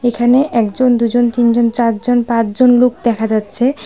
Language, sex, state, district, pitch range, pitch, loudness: Bengali, female, Tripura, West Tripura, 230-245 Hz, 240 Hz, -13 LUFS